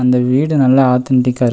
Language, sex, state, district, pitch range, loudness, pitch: Tamil, male, Tamil Nadu, Nilgiris, 125-130 Hz, -13 LUFS, 125 Hz